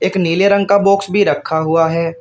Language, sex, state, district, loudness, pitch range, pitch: Hindi, male, Uttar Pradesh, Shamli, -14 LUFS, 165-200 Hz, 185 Hz